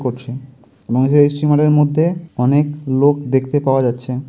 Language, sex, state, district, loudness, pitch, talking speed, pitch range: Bengali, male, West Bengal, Kolkata, -16 LUFS, 135 Hz, 155 wpm, 130-150 Hz